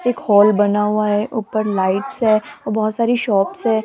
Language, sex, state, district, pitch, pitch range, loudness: Hindi, female, Rajasthan, Jaipur, 215 Hz, 205-225 Hz, -17 LUFS